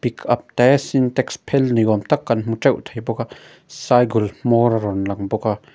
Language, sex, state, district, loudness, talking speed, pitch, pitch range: Mizo, male, Mizoram, Aizawl, -19 LUFS, 210 wpm, 120 Hz, 110-130 Hz